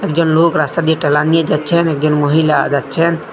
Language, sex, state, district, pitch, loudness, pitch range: Bengali, male, Assam, Hailakandi, 160 Hz, -14 LUFS, 150-165 Hz